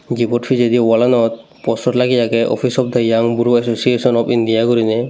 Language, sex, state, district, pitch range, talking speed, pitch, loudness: Chakma, male, Tripura, Dhalai, 115-125 Hz, 175 wpm, 120 Hz, -15 LUFS